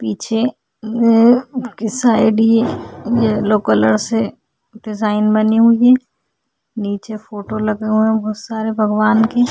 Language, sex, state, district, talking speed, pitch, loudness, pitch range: Hindi, female, Chhattisgarh, Sukma, 140 wpm, 220 Hz, -15 LUFS, 215-230 Hz